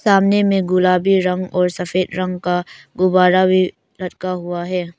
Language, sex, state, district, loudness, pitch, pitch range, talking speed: Hindi, female, Arunachal Pradesh, Papum Pare, -17 LUFS, 185 Hz, 180-185 Hz, 155 wpm